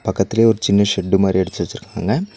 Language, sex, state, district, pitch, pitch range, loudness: Tamil, male, Tamil Nadu, Nilgiris, 100 Hz, 95-110 Hz, -17 LUFS